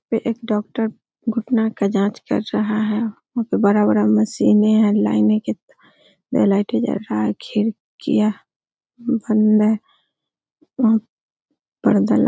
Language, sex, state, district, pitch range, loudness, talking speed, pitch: Hindi, female, Uttar Pradesh, Hamirpur, 200-225 Hz, -19 LUFS, 115 wpm, 215 Hz